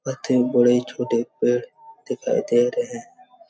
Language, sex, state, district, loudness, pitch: Hindi, male, Chhattisgarh, Raigarh, -22 LUFS, 130 Hz